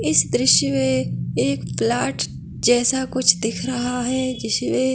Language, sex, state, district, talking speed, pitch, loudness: Hindi, female, Chhattisgarh, Kabirdham, 135 wpm, 245 Hz, -20 LUFS